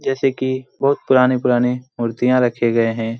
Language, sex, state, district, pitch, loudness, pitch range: Hindi, male, Bihar, Jamui, 125 Hz, -18 LUFS, 120-130 Hz